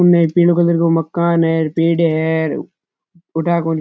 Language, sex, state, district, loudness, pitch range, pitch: Rajasthani, male, Rajasthan, Churu, -15 LUFS, 160-170 Hz, 165 Hz